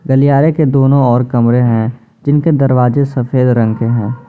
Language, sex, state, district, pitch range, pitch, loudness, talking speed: Hindi, male, Jharkhand, Ranchi, 120-140 Hz, 125 Hz, -12 LUFS, 170 wpm